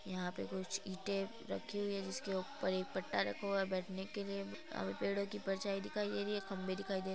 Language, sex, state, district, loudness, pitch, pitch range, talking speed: Hindi, female, Rajasthan, Churu, -41 LUFS, 195 Hz, 185-200 Hz, 250 wpm